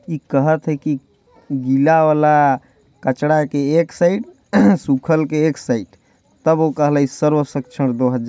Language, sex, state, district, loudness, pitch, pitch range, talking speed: Chhattisgarhi, male, Chhattisgarh, Jashpur, -17 LUFS, 150 Hz, 140-160 Hz, 160 wpm